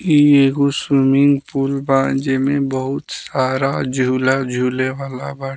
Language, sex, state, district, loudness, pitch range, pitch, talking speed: Bhojpuri, male, Bihar, Muzaffarpur, -17 LUFS, 130-140 Hz, 135 Hz, 130 wpm